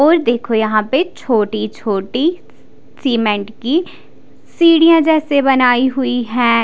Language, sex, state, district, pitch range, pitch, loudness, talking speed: Hindi, female, Odisha, Khordha, 225-310 Hz, 250 Hz, -14 LUFS, 115 wpm